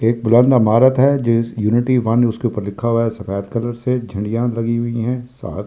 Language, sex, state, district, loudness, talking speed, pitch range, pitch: Hindi, male, Delhi, New Delhi, -17 LUFS, 170 wpm, 110-120 Hz, 115 Hz